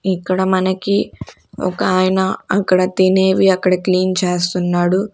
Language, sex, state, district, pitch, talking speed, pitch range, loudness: Telugu, female, Andhra Pradesh, Sri Satya Sai, 185 Hz, 95 wpm, 185-190 Hz, -16 LUFS